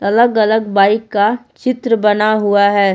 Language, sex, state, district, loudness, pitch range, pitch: Hindi, female, Jharkhand, Palamu, -14 LUFS, 205-225 Hz, 215 Hz